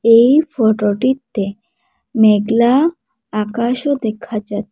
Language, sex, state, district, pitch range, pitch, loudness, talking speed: Bengali, female, Assam, Hailakandi, 215-255 Hz, 230 Hz, -16 LUFS, 75 wpm